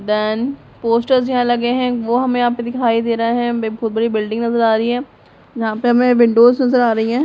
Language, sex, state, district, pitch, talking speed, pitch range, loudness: Hindi, female, Bihar, Purnia, 235 Hz, 250 wpm, 230-245 Hz, -16 LUFS